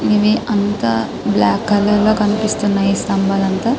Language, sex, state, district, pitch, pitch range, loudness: Telugu, female, Telangana, Karimnagar, 205 Hz, 195-215 Hz, -16 LUFS